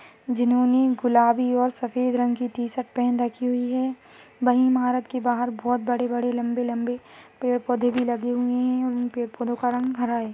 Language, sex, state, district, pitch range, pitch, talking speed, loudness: Hindi, female, Chhattisgarh, Sarguja, 245-250 Hz, 245 Hz, 175 wpm, -24 LUFS